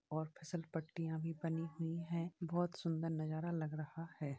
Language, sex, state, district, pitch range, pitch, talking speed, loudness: Hindi, male, Uttar Pradesh, Varanasi, 160-170 Hz, 165 Hz, 180 wpm, -43 LUFS